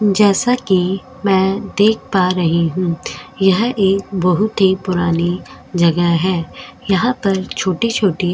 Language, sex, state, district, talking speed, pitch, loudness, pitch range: Hindi, female, Goa, North and South Goa, 130 wpm, 190 Hz, -16 LUFS, 180-205 Hz